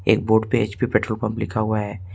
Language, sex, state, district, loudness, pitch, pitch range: Hindi, male, Jharkhand, Ranchi, -21 LUFS, 110 Hz, 105-110 Hz